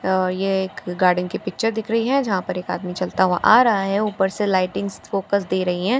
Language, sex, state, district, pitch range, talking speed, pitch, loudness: Hindi, female, Bihar, Katihar, 185-205 Hz, 290 wpm, 190 Hz, -20 LUFS